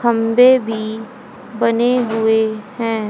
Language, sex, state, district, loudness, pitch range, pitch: Hindi, female, Haryana, Jhajjar, -16 LUFS, 220-245 Hz, 225 Hz